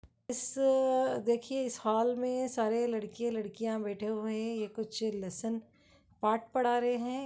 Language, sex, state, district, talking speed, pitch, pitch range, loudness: Kumaoni, female, Uttarakhand, Uttarkashi, 155 wpm, 230 Hz, 220-250 Hz, -33 LUFS